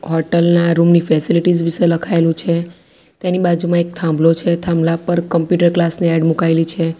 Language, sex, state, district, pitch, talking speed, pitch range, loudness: Gujarati, female, Gujarat, Valsad, 170 Hz, 180 wpm, 165-175 Hz, -15 LUFS